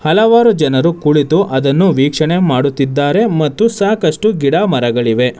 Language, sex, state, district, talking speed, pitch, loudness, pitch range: Kannada, male, Karnataka, Bangalore, 110 wpm, 155 Hz, -12 LUFS, 135-200 Hz